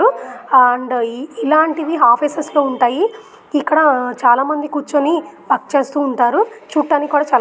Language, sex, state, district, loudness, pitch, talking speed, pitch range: Telugu, female, Andhra Pradesh, Guntur, -15 LUFS, 290 Hz, 145 wpm, 255-310 Hz